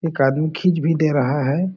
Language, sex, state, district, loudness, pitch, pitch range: Hindi, male, Chhattisgarh, Balrampur, -19 LUFS, 155 Hz, 140-165 Hz